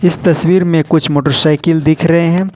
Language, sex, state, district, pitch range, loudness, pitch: Hindi, male, Jharkhand, Ranchi, 155-175 Hz, -11 LUFS, 165 Hz